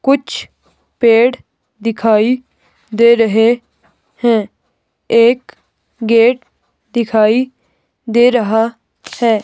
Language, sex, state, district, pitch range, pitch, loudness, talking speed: Hindi, female, Himachal Pradesh, Shimla, 225-245 Hz, 235 Hz, -13 LUFS, 75 wpm